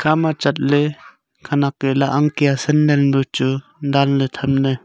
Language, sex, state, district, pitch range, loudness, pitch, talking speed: Wancho, male, Arunachal Pradesh, Longding, 135-150 Hz, -18 LUFS, 140 Hz, 175 wpm